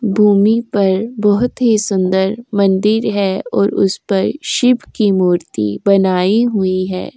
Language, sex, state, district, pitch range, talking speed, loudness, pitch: Hindi, female, Uttar Pradesh, Jyotiba Phule Nagar, 190-215 Hz, 135 wpm, -14 LUFS, 200 Hz